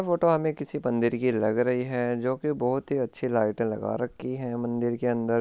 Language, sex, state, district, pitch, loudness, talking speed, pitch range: Hindi, male, Rajasthan, Churu, 125 Hz, -27 LUFS, 230 wpm, 120-130 Hz